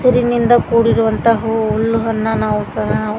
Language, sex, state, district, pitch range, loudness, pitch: Kannada, female, Karnataka, Koppal, 220-235 Hz, -15 LUFS, 225 Hz